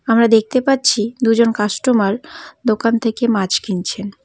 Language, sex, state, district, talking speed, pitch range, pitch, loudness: Bengali, female, West Bengal, Cooch Behar, 125 wpm, 210-250 Hz, 230 Hz, -16 LUFS